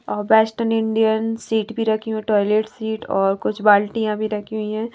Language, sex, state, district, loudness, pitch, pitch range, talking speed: Hindi, female, Bihar, Kaimur, -20 LUFS, 220 Hz, 210-220 Hz, 195 wpm